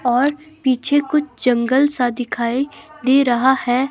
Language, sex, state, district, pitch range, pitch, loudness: Hindi, female, Himachal Pradesh, Shimla, 245-290 Hz, 265 Hz, -18 LUFS